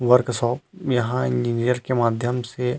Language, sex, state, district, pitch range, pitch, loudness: Chhattisgarhi, male, Chhattisgarh, Rajnandgaon, 120-125 Hz, 120 Hz, -22 LUFS